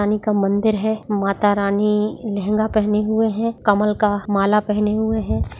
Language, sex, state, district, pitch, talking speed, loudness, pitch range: Hindi, female, Bihar, Muzaffarpur, 210 Hz, 170 wpm, -19 LUFS, 205-215 Hz